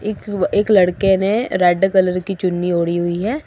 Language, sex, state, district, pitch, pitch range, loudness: Hindi, female, Assam, Sonitpur, 190 Hz, 180-205 Hz, -17 LUFS